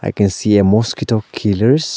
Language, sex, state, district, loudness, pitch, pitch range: English, male, Arunachal Pradesh, Lower Dibang Valley, -15 LUFS, 110 Hz, 100-125 Hz